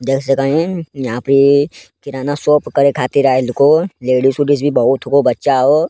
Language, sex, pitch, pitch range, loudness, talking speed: Angika, male, 140 Hz, 135-145 Hz, -14 LUFS, 185 wpm